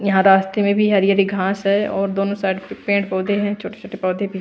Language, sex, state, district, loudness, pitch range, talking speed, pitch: Hindi, female, Bihar, Patna, -18 LUFS, 190-200 Hz, 230 wpm, 195 Hz